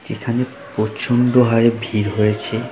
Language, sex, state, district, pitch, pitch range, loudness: Bengali, male, West Bengal, Jhargram, 115 Hz, 110-125 Hz, -18 LUFS